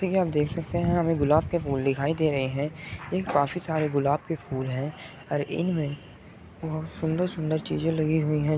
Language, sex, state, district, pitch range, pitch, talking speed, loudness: Hindi, male, Uttar Pradesh, Muzaffarnagar, 145-165 Hz, 155 Hz, 205 wpm, -27 LUFS